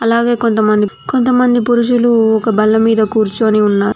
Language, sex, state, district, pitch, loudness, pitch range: Telugu, female, Telangana, Mahabubabad, 225 Hz, -12 LUFS, 215-240 Hz